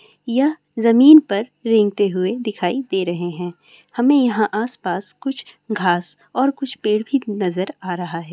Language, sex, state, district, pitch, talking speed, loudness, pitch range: Hindi, female, Andhra Pradesh, Chittoor, 210 Hz, 165 wpm, -18 LUFS, 180-250 Hz